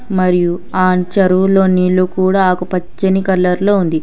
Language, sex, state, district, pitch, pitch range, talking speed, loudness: Telugu, female, Telangana, Hyderabad, 185 Hz, 180-190 Hz, 135 wpm, -13 LUFS